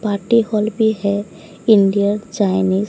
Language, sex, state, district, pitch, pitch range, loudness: Hindi, female, Odisha, Sambalpur, 205 Hz, 200-220 Hz, -17 LUFS